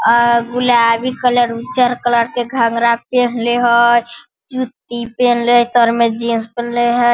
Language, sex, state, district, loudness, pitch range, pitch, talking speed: Hindi, female, Bihar, Sitamarhi, -14 LUFS, 235-245 Hz, 240 Hz, 145 wpm